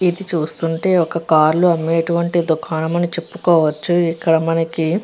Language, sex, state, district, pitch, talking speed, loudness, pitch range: Telugu, female, Andhra Pradesh, Visakhapatnam, 165 Hz, 145 wpm, -17 LUFS, 160-175 Hz